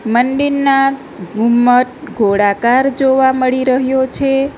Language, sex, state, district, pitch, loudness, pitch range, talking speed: Gujarati, female, Gujarat, Navsari, 260 Hz, -13 LUFS, 240-270 Hz, 90 wpm